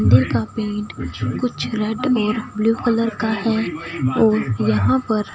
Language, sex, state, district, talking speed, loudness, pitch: Hindi, female, Punjab, Fazilka, 145 wpm, -20 LUFS, 215 Hz